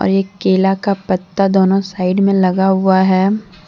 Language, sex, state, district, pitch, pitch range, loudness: Hindi, female, Jharkhand, Deoghar, 190 Hz, 190-195 Hz, -14 LUFS